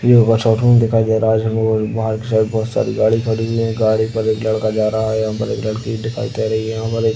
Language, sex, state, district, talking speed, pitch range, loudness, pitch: Hindi, male, Uttar Pradesh, Deoria, 245 wpm, 110-115 Hz, -17 LUFS, 110 Hz